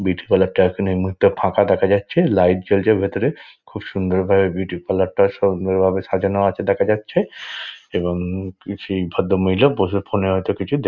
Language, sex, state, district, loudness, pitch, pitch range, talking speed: Bengali, male, West Bengal, Dakshin Dinajpur, -19 LUFS, 95 Hz, 95-100 Hz, 175 wpm